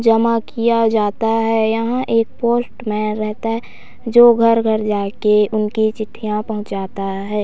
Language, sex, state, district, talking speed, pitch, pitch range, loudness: Hindi, female, Chhattisgarh, Raigarh, 130 wpm, 220 Hz, 210-230 Hz, -17 LUFS